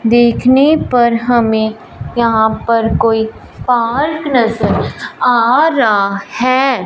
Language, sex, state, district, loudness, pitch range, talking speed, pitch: Hindi, female, Punjab, Fazilka, -13 LUFS, 220-255 Hz, 95 wpm, 235 Hz